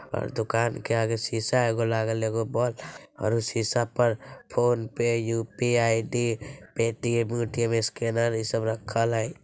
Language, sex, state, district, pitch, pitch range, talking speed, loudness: Bajjika, female, Bihar, Vaishali, 115 Hz, 115-120 Hz, 160 wpm, -26 LUFS